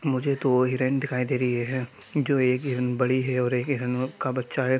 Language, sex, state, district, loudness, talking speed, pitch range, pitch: Hindi, male, Bihar, Sitamarhi, -25 LUFS, 225 wpm, 125-135 Hz, 130 Hz